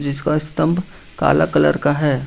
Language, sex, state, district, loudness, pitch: Hindi, male, Jharkhand, Ranchi, -18 LUFS, 140 Hz